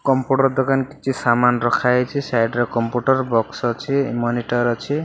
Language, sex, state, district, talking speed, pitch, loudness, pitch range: Odia, male, Odisha, Malkangiri, 155 wpm, 125 Hz, -19 LUFS, 120-135 Hz